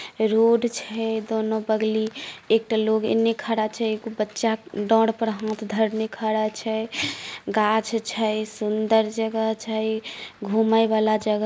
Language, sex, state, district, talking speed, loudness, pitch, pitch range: Maithili, female, Bihar, Samastipur, 140 wpm, -23 LUFS, 220 Hz, 215-225 Hz